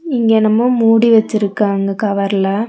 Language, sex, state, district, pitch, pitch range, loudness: Tamil, female, Tamil Nadu, Nilgiris, 215 Hz, 200-230 Hz, -13 LUFS